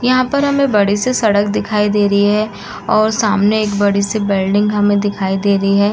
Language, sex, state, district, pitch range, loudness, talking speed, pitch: Hindi, female, Uttar Pradesh, Muzaffarnagar, 200-215 Hz, -14 LUFS, 210 wpm, 205 Hz